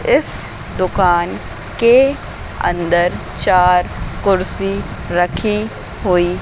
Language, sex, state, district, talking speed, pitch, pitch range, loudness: Hindi, female, Madhya Pradesh, Katni, 75 wpm, 185 Hz, 175-210 Hz, -16 LUFS